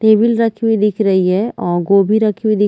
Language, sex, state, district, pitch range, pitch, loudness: Hindi, female, Chhattisgarh, Rajnandgaon, 195-220 Hz, 215 Hz, -14 LUFS